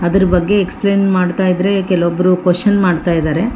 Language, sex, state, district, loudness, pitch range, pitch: Kannada, female, Karnataka, Bellary, -14 LUFS, 175-195 Hz, 185 Hz